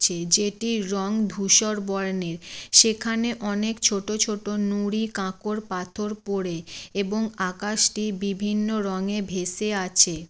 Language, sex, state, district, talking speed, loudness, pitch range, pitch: Bengali, female, West Bengal, Jalpaiguri, 120 wpm, -23 LUFS, 190-215 Hz, 205 Hz